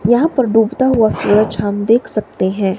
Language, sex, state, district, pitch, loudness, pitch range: Hindi, female, Himachal Pradesh, Shimla, 220 Hz, -14 LUFS, 205-240 Hz